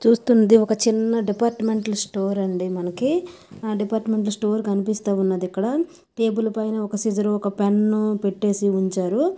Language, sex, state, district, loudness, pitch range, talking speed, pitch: Telugu, female, Andhra Pradesh, Krishna, -21 LUFS, 200-225 Hz, 140 wpm, 215 Hz